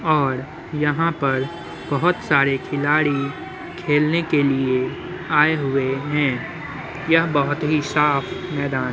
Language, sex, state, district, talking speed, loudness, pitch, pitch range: Hindi, male, Bihar, Muzaffarpur, 120 wpm, -20 LUFS, 145 Hz, 140-160 Hz